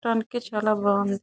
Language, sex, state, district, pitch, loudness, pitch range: Telugu, female, Andhra Pradesh, Chittoor, 215 Hz, -25 LUFS, 200-230 Hz